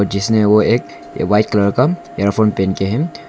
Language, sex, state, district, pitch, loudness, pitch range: Hindi, male, Arunachal Pradesh, Longding, 105 Hz, -15 LUFS, 100-110 Hz